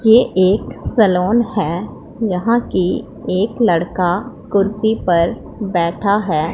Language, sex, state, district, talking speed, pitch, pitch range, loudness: Hindi, female, Punjab, Pathankot, 110 wpm, 200 Hz, 180-225 Hz, -17 LUFS